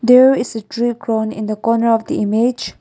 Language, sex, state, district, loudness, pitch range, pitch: English, female, Nagaland, Kohima, -16 LUFS, 220-245 Hz, 230 Hz